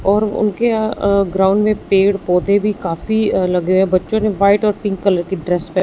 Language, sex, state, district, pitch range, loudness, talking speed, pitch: Hindi, female, Punjab, Fazilka, 185-210 Hz, -16 LUFS, 205 wpm, 200 Hz